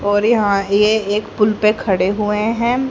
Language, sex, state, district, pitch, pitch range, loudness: Hindi, female, Haryana, Charkhi Dadri, 210 Hz, 205-220 Hz, -16 LUFS